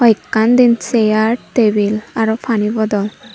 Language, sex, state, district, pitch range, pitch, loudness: Chakma, female, Tripura, Dhalai, 215-230 Hz, 220 Hz, -14 LUFS